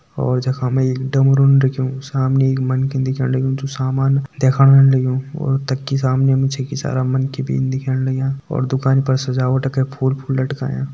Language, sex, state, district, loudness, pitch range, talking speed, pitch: Garhwali, male, Uttarakhand, Tehri Garhwal, -17 LUFS, 130-135 Hz, 155 wpm, 135 Hz